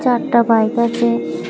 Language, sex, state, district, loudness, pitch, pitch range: Bengali, female, Tripura, West Tripura, -16 LUFS, 235 Hz, 220-240 Hz